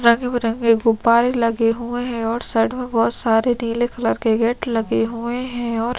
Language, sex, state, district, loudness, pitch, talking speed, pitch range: Hindi, female, Chhattisgarh, Sukma, -19 LUFS, 235 Hz, 170 wpm, 225-240 Hz